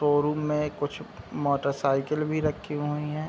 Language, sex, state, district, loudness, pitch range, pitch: Hindi, male, Bihar, Saharsa, -28 LUFS, 145-150 Hz, 150 Hz